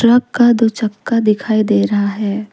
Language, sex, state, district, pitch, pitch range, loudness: Hindi, female, Jharkhand, Deoghar, 215 Hz, 210-235 Hz, -14 LUFS